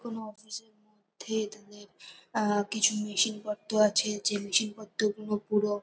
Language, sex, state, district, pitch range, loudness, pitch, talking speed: Bengali, female, West Bengal, North 24 Parganas, 205-215 Hz, -29 LUFS, 210 Hz, 135 wpm